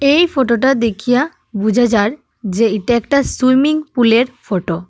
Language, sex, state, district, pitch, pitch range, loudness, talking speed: Bengali, female, Assam, Hailakandi, 245 Hz, 220-265 Hz, -15 LUFS, 170 wpm